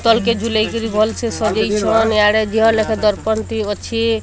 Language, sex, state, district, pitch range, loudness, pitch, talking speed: Odia, female, Odisha, Sambalpur, 215-225 Hz, -16 LUFS, 220 Hz, 200 wpm